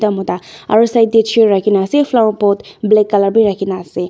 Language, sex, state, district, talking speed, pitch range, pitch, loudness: Nagamese, female, Nagaland, Dimapur, 205 wpm, 195-225 Hz, 210 Hz, -13 LUFS